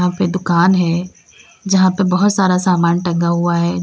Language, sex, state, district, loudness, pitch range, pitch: Hindi, female, Uttar Pradesh, Lalitpur, -15 LUFS, 170-185 Hz, 180 Hz